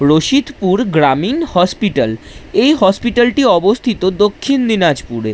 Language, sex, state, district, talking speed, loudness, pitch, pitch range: Bengali, male, West Bengal, Dakshin Dinajpur, 100 wpm, -13 LUFS, 205 Hz, 160-245 Hz